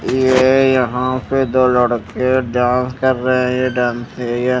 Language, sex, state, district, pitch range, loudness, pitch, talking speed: Hindi, male, Chandigarh, Chandigarh, 125-130 Hz, -16 LUFS, 125 Hz, 170 wpm